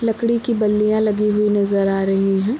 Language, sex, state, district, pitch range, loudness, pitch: Hindi, female, Bihar, Gopalganj, 195-225 Hz, -18 LUFS, 210 Hz